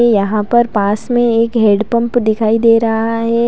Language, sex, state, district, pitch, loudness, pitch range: Hindi, female, Uttar Pradesh, Lalitpur, 230 Hz, -13 LUFS, 220-235 Hz